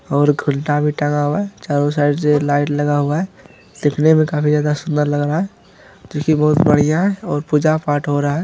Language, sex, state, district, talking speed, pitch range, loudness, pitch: Hindi, male, Bihar, Supaul, 215 wpm, 145-155 Hz, -17 LUFS, 150 Hz